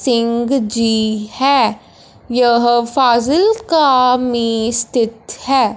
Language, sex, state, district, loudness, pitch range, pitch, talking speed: Hindi, male, Punjab, Fazilka, -14 LUFS, 230-265 Hz, 240 Hz, 85 wpm